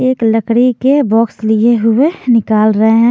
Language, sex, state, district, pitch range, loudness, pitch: Hindi, female, Punjab, Fazilka, 220-250 Hz, -11 LUFS, 230 Hz